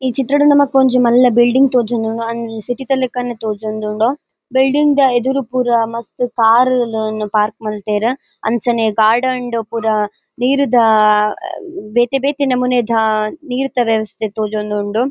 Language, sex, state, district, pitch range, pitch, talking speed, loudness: Tulu, female, Karnataka, Dakshina Kannada, 220-255 Hz, 235 Hz, 130 wpm, -15 LUFS